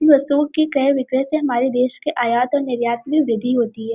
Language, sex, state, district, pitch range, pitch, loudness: Hindi, female, Uttar Pradesh, Varanasi, 240-290 Hz, 260 Hz, -18 LUFS